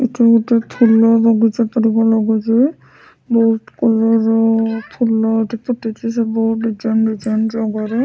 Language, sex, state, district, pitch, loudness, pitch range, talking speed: Odia, female, Odisha, Sambalpur, 225 Hz, -15 LUFS, 225-230 Hz, 120 wpm